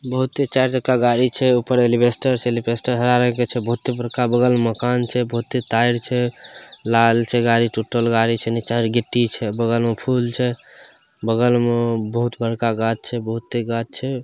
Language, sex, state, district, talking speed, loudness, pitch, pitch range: Maithili, male, Bihar, Samastipur, 195 wpm, -19 LUFS, 120 Hz, 115-125 Hz